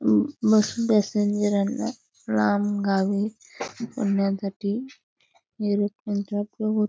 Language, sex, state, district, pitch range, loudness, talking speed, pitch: Marathi, female, Karnataka, Belgaum, 200-215 Hz, -25 LUFS, 85 wpm, 205 Hz